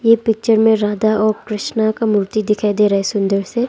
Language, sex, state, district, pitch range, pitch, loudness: Hindi, female, Arunachal Pradesh, Longding, 210-225 Hz, 215 Hz, -16 LUFS